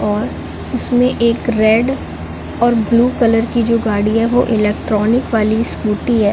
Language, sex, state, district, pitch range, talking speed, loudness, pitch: Hindi, female, Chhattisgarh, Balrampur, 215-240 Hz, 150 wpm, -15 LUFS, 230 Hz